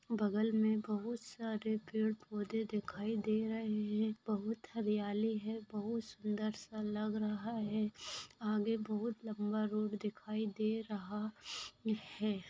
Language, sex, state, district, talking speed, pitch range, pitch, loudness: Bhojpuri, female, Bihar, Saran, 140 wpm, 210-220 Hz, 215 Hz, -39 LUFS